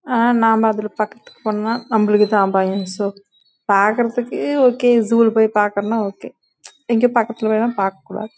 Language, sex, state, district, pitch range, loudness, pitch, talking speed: Tamil, female, Karnataka, Chamarajanagar, 205-235 Hz, -17 LUFS, 220 Hz, 45 wpm